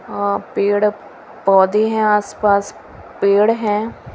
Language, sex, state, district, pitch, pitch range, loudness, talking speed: Hindi, female, Himachal Pradesh, Shimla, 210 Hz, 200-215 Hz, -16 LUFS, 100 wpm